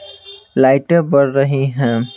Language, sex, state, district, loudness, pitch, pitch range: Hindi, male, Bihar, Patna, -14 LUFS, 135 Hz, 135-170 Hz